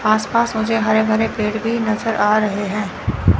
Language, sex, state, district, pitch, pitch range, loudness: Hindi, female, Chandigarh, Chandigarh, 215 Hz, 210-225 Hz, -18 LUFS